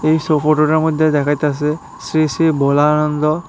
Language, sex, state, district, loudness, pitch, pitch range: Bengali, male, Tripura, West Tripura, -15 LUFS, 150 Hz, 150-155 Hz